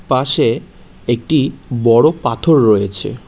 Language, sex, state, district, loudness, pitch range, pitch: Bengali, male, West Bengal, Cooch Behar, -14 LUFS, 115-150 Hz, 120 Hz